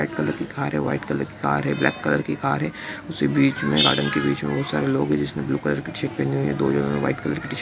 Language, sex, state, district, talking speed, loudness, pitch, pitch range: Hindi, male, Bihar, East Champaran, 340 wpm, -23 LUFS, 70 Hz, 70-75 Hz